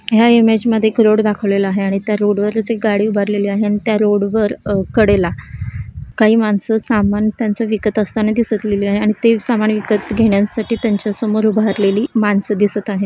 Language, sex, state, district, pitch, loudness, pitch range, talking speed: Marathi, female, Maharashtra, Solapur, 210 Hz, -15 LUFS, 205-220 Hz, 185 wpm